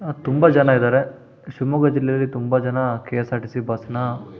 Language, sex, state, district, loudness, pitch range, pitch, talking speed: Kannada, male, Karnataka, Shimoga, -20 LUFS, 125-140 Hz, 130 Hz, 150 wpm